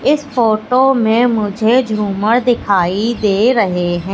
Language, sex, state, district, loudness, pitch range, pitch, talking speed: Hindi, female, Madhya Pradesh, Katni, -14 LUFS, 205-245 Hz, 225 Hz, 130 wpm